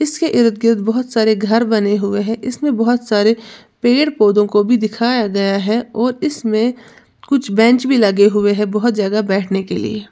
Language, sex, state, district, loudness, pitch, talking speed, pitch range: Hindi, female, Uttar Pradesh, Lalitpur, -15 LUFS, 225 Hz, 185 wpm, 210-240 Hz